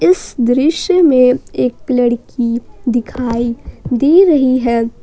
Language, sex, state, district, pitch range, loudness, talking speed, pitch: Hindi, female, Jharkhand, Ranchi, 235-280 Hz, -13 LUFS, 120 wpm, 245 Hz